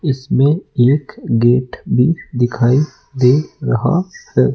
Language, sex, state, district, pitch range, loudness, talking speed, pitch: Hindi, male, Rajasthan, Jaipur, 120-155 Hz, -16 LUFS, 105 wpm, 130 Hz